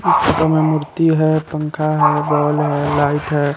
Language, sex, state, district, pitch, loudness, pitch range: Hindi, male, Chandigarh, Chandigarh, 150 Hz, -16 LUFS, 150-155 Hz